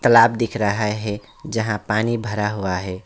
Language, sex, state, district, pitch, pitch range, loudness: Hindi, male, West Bengal, Alipurduar, 105 Hz, 105-115 Hz, -21 LUFS